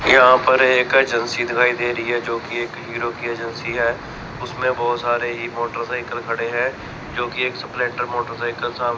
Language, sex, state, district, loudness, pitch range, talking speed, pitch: Hindi, male, Chandigarh, Chandigarh, -20 LUFS, 120-125 Hz, 185 wpm, 120 Hz